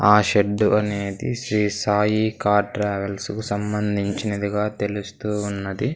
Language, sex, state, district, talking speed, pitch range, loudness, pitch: Telugu, male, Andhra Pradesh, Sri Satya Sai, 110 wpm, 100-105 Hz, -22 LUFS, 105 Hz